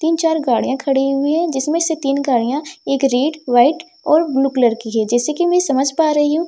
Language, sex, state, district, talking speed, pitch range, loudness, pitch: Hindi, female, Delhi, New Delhi, 230 wpm, 265-320 Hz, -16 LUFS, 280 Hz